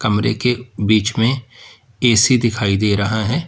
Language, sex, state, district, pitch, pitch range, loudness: Hindi, male, Uttar Pradesh, Lalitpur, 115 Hz, 105-125 Hz, -16 LUFS